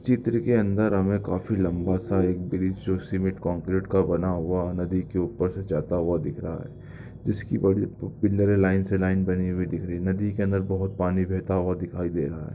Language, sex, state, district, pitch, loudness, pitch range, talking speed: Hindi, male, Chhattisgarh, Raigarh, 95 Hz, -26 LUFS, 90-100 Hz, 215 wpm